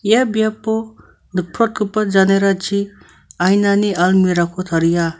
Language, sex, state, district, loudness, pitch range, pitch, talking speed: Garo, male, Meghalaya, North Garo Hills, -16 LUFS, 180-215 Hz, 195 Hz, 90 wpm